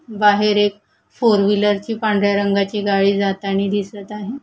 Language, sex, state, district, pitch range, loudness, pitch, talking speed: Marathi, female, Maharashtra, Gondia, 200-210 Hz, -17 LUFS, 205 Hz, 150 wpm